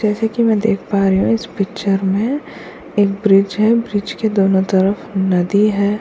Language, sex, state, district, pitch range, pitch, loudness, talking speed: Hindi, female, Bihar, Kishanganj, 195-220 Hz, 205 Hz, -16 LUFS, 190 wpm